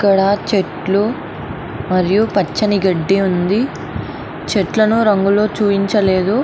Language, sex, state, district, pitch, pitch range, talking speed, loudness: Telugu, female, Andhra Pradesh, Anantapur, 200 Hz, 195-210 Hz, 85 wpm, -16 LUFS